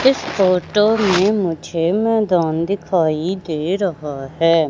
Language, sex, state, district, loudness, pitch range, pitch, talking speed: Hindi, male, Madhya Pradesh, Katni, -18 LUFS, 165-200 Hz, 180 Hz, 115 wpm